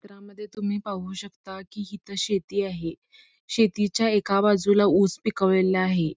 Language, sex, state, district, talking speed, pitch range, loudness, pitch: Marathi, female, Karnataka, Belgaum, 135 wpm, 190-210 Hz, -24 LUFS, 200 Hz